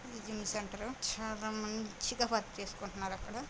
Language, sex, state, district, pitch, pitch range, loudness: Telugu, female, Andhra Pradesh, Guntur, 215 Hz, 210-220 Hz, -38 LUFS